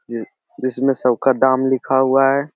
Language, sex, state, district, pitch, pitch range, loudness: Hindi, male, Bihar, Jamui, 130 Hz, 130-135 Hz, -17 LUFS